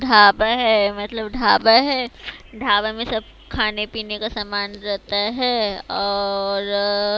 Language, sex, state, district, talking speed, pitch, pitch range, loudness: Hindi, female, Himachal Pradesh, Shimla, 125 wpm, 210 Hz, 205-225 Hz, -19 LUFS